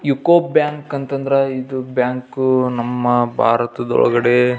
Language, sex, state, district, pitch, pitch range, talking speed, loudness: Kannada, male, Karnataka, Belgaum, 130 Hz, 120-140 Hz, 130 wpm, -17 LUFS